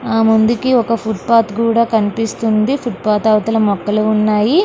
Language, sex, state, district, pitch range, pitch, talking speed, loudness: Telugu, female, Andhra Pradesh, Srikakulam, 215-230 Hz, 225 Hz, 155 wpm, -14 LUFS